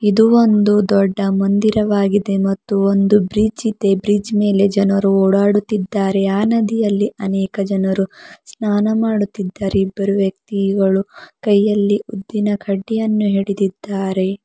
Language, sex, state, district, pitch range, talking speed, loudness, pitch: Kannada, female, Karnataka, Bidar, 195-210 Hz, 100 wpm, -16 LUFS, 200 Hz